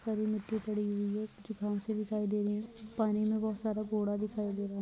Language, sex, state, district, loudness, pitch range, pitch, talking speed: Hindi, female, Rajasthan, Churu, -35 LUFS, 205-215 Hz, 215 Hz, 250 wpm